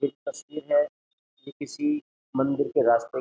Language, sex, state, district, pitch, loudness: Hindi, male, Uttar Pradesh, Jyotiba Phule Nagar, 145 Hz, -26 LUFS